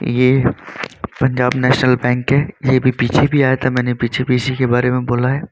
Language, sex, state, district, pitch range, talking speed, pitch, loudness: Hindi, male, Uttar Pradesh, Varanasi, 125-130 Hz, 220 wpm, 125 Hz, -16 LUFS